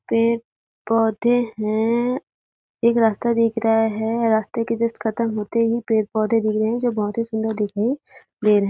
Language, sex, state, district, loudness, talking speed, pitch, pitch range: Hindi, female, Chhattisgarh, Sarguja, -21 LUFS, 185 wpm, 225 Hz, 220-230 Hz